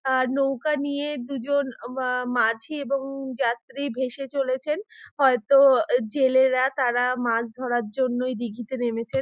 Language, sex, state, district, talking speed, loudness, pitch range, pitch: Bengali, female, West Bengal, Dakshin Dinajpur, 125 wpm, -24 LUFS, 245-275 Hz, 260 Hz